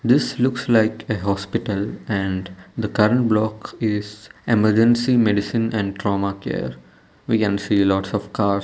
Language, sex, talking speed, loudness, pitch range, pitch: English, male, 145 wpm, -20 LUFS, 100-115 Hz, 105 Hz